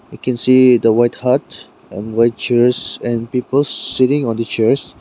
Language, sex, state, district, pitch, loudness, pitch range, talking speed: English, male, Nagaland, Dimapur, 125 Hz, -15 LUFS, 115-130 Hz, 180 wpm